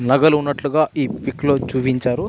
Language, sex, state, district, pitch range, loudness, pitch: Telugu, male, Andhra Pradesh, Anantapur, 130-145 Hz, -19 LUFS, 140 Hz